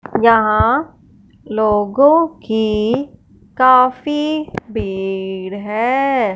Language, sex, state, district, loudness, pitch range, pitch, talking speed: Hindi, male, Punjab, Fazilka, -16 LUFS, 210-270 Hz, 225 Hz, 55 wpm